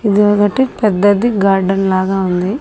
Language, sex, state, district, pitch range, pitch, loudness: Telugu, female, Andhra Pradesh, Annamaya, 195-210 Hz, 205 Hz, -13 LUFS